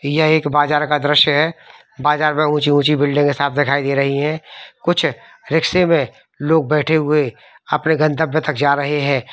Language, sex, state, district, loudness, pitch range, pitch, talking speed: Hindi, male, Uttar Pradesh, Varanasi, -16 LUFS, 145-155 Hz, 150 Hz, 185 wpm